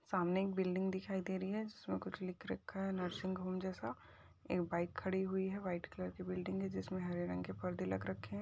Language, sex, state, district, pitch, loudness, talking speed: Hindi, female, Uttar Pradesh, Jyotiba Phule Nagar, 180 Hz, -41 LUFS, 235 wpm